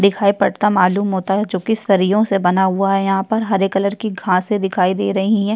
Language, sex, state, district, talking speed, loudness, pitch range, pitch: Hindi, female, Uttar Pradesh, Jyotiba Phule Nagar, 225 wpm, -17 LUFS, 190-205 Hz, 195 Hz